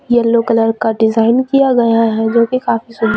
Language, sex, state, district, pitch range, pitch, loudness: Hindi, female, Chhattisgarh, Raipur, 225-240 Hz, 230 Hz, -13 LUFS